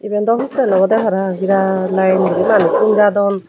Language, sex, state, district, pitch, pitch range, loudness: Chakma, female, Tripura, Unakoti, 195 Hz, 190-210 Hz, -14 LUFS